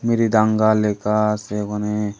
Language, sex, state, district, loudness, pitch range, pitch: Bengali, male, Tripura, Dhalai, -19 LUFS, 105-110 Hz, 105 Hz